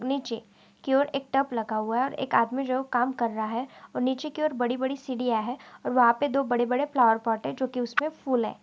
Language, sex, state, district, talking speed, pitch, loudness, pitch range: Hindi, female, Maharashtra, Aurangabad, 250 wpm, 255 Hz, -27 LUFS, 235-275 Hz